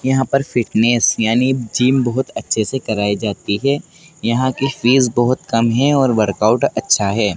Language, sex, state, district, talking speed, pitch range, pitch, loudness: Hindi, male, Madhya Pradesh, Dhar, 170 wpm, 110-130 Hz, 120 Hz, -16 LUFS